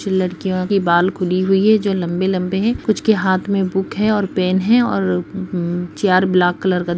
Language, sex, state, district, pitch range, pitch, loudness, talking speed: Kumaoni, female, Uttarakhand, Uttarkashi, 180-200 Hz, 190 Hz, -17 LUFS, 195 wpm